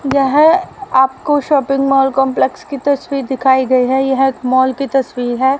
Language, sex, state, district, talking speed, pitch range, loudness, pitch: Hindi, female, Haryana, Charkhi Dadri, 170 wpm, 265-280 Hz, -14 LUFS, 270 Hz